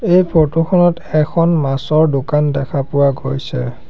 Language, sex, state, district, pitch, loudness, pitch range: Assamese, male, Assam, Sonitpur, 150 Hz, -15 LUFS, 135-165 Hz